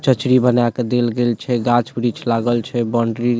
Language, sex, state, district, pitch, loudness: Maithili, male, Bihar, Supaul, 120 Hz, -18 LUFS